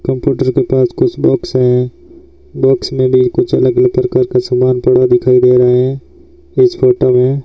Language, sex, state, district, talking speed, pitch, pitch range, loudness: Hindi, male, Rajasthan, Bikaner, 195 wpm, 130 Hz, 125-140 Hz, -12 LUFS